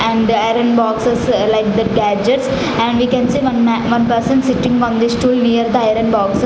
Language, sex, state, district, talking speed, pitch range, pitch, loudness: English, female, Punjab, Fazilka, 215 wpm, 225-245 Hz, 235 Hz, -14 LUFS